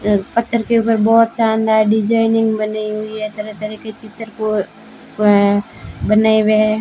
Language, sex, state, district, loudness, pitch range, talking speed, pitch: Hindi, female, Rajasthan, Bikaner, -16 LUFS, 215-225 Hz, 150 wpm, 215 Hz